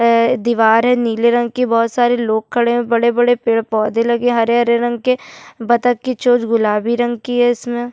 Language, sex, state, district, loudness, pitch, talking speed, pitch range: Hindi, female, Uttarakhand, Tehri Garhwal, -15 LUFS, 235 Hz, 195 wpm, 230-245 Hz